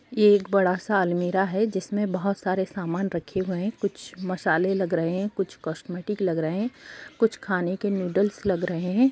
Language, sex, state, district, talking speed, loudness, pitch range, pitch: Hindi, female, Bihar, Gopalganj, 190 wpm, -25 LUFS, 180-205 Hz, 190 Hz